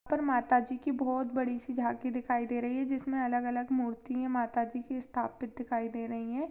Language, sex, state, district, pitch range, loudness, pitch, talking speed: Hindi, female, Chhattisgarh, Sarguja, 240-260 Hz, -33 LUFS, 250 Hz, 205 wpm